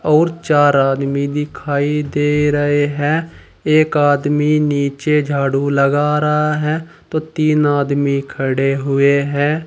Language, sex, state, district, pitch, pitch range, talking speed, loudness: Hindi, male, Uttar Pradesh, Saharanpur, 145 Hz, 140-150 Hz, 125 wpm, -16 LUFS